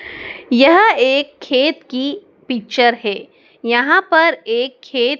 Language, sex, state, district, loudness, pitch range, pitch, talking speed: Hindi, male, Madhya Pradesh, Dhar, -15 LUFS, 240-320 Hz, 260 Hz, 115 wpm